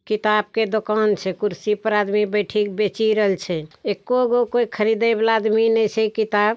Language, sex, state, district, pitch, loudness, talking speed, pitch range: Angika, male, Bihar, Bhagalpur, 215 Hz, -20 LUFS, 175 wpm, 210-220 Hz